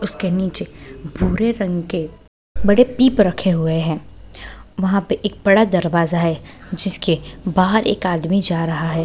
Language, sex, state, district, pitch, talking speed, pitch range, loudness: Hindi, female, Bihar, Sitamarhi, 185 Hz, 150 wpm, 165-200 Hz, -18 LUFS